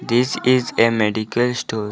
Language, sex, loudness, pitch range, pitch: English, male, -18 LUFS, 110-125 Hz, 115 Hz